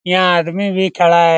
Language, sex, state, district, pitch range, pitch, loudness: Hindi, male, Bihar, Lakhisarai, 170-190 Hz, 180 Hz, -14 LUFS